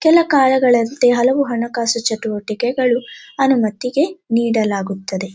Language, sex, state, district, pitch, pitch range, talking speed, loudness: Kannada, female, Karnataka, Shimoga, 240 Hz, 220-265 Hz, 80 wpm, -17 LUFS